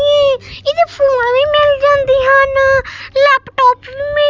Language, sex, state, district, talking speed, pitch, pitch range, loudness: Punjabi, female, Punjab, Kapurthala, 155 wpm, 285 Hz, 275-295 Hz, -12 LUFS